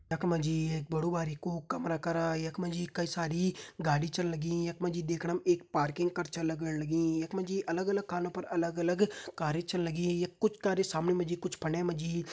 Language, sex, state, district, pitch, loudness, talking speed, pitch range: Garhwali, male, Uttarakhand, Uttarkashi, 170 Hz, -33 LUFS, 195 wpm, 165-180 Hz